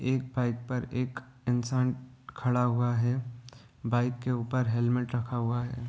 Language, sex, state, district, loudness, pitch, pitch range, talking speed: Hindi, male, Bihar, Gopalganj, -30 LUFS, 125 Hz, 120-125 Hz, 165 wpm